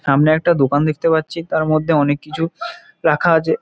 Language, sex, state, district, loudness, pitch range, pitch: Bengali, male, West Bengal, Kolkata, -17 LUFS, 150-165 Hz, 155 Hz